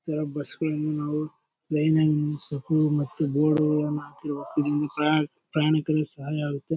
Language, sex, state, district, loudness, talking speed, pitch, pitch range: Kannada, male, Karnataka, Bellary, -25 LUFS, 140 wpm, 150 Hz, 150-155 Hz